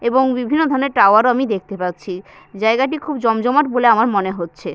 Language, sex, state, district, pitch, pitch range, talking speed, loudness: Bengali, female, West Bengal, Jalpaiguri, 235 Hz, 195-265 Hz, 190 wpm, -16 LUFS